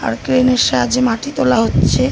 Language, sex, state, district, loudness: Bengali, female, West Bengal, North 24 Parganas, -14 LUFS